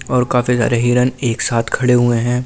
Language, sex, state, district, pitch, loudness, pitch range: Hindi, male, Delhi, New Delhi, 120 Hz, -15 LUFS, 120-125 Hz